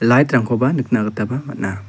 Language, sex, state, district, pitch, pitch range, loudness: Garo, male, Meghalaya, South Garo Hills, 120 Hz, 105-130 Hz, -18 LUFS